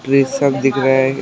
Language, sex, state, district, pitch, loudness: Hindi, male, West Bengal, Alipurduar, 135 Hz, -15 LUFS